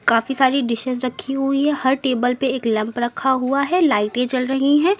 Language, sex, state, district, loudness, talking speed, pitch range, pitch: Hindi, female, Uttar Pradesh, Lucknow, -19 LUFS, 215 wpm, 245-275 Hz, 260 Hz